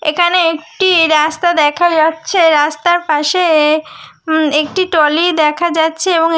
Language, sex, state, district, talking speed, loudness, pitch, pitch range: Bengali, female, West Bengal, Dakshin Dinajpur, 140 wpm, -12 LUFS, 325 Hz, 305-345 Hz